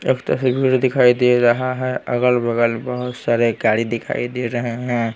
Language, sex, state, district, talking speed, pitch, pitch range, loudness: Hindi, male, Bihar, Patna, 160 wpm, 125 Hz, 120-125 Hz, -18 LUFS